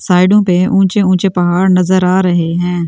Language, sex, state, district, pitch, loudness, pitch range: Hindi, female, Delhi, New Delhi, 185 Hz, -11 LUFS, 180-190 Hz